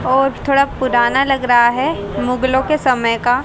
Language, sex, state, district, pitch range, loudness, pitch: Hindi, female, Haryana, Rohtak, 245-270 Hz, -15 LUFS, 260 Hz